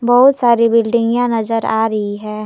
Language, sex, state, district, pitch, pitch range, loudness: Hindi, female, Jharkhand, Palamu, 230 Hz, 220-240 Hz, -14 LUFS